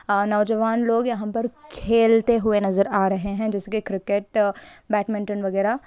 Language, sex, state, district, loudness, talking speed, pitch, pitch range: Hindi, female, Rajasthan, Churu, -22 LUFS, 155 wpm, 210 Hz, 200-225 Hz